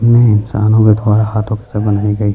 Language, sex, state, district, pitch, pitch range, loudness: Hindi, male, Chhattisgarh, Kabirdham, 105 Hz, 105-110 Hz, -12 LUFS